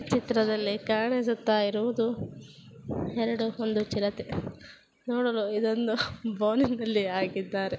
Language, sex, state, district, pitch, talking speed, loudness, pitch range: Kannada, female, Karnataka, Chamarajanagar, 225 Hz, 70 wpm, -28 LUFS, 210-235 Hz